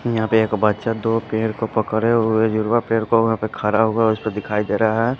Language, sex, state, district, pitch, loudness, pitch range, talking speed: Hindi, male, Punjab, Pathankot, 110 Hz, -19 LUFS, 110-115 Hz, 255 wpm